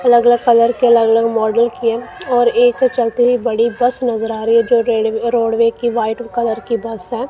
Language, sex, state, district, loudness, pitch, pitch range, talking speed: Hindi, female, Punjab, Kapurthala, -15 LUFS, 235 Hz, 230-240 Hz, 220 wpm